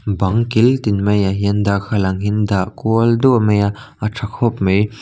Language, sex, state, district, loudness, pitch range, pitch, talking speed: Mizo, male, Mizoram, Aizawl, -16 LUFS, 100-115 Hz, 105 Hz, 205 wpm